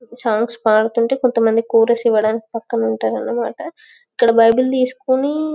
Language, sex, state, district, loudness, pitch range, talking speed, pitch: Telugu, female, Telangana, Karimnagar, -17 LUFS, 225-260 Hz, 110 wpm, 235 Hz